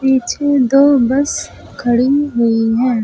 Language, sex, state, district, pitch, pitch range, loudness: Hindi, female, Uttar Pradesh, Lucknow, 260 Hz, 240-280 Hz, -14 LUFS